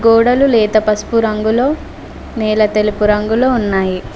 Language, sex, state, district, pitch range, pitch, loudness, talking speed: Telugu, female, Telangana, Mahabubabad, 210-230 Hz, 220 Hz, -14 LUFS, 115 wpm